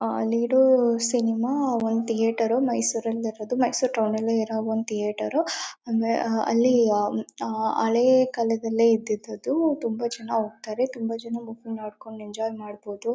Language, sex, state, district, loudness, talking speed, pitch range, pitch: Kannada, female, Karnataka, Mysore, -24 LUFS, 110 wpm, 220-235 Hz, 225 Hz